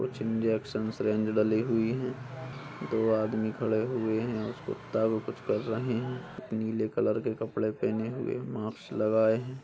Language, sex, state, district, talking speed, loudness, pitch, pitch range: Hindi, male, Bihar, Purnia, 180 wpm, -30 LUFS, 110 Hz, 110-125 Hz